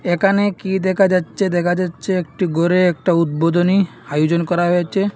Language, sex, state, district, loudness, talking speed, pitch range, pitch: Bengali, male, Assam, Hailakandi, -17 LUFS, 150 wpm, 170-190 Hz, 180 Hz